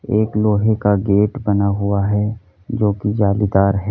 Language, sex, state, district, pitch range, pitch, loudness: Hindi, male, Uttar Pradesh, Lalitpur, 100-105 Hz, 105 Hz, -17 LUFS